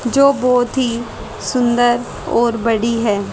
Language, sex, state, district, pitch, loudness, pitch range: Hindi, female, Haryana, Rohtak, 240 Hz, -16 LUFS, 230-250 Hz